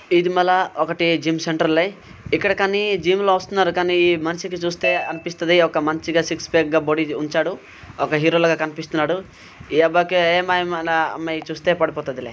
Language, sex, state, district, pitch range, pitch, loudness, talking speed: Telugu, male, Andhra Pradesh, Srikakulam, 160-180 Hz, 165 Hz, -19 LUFS, 160 wpm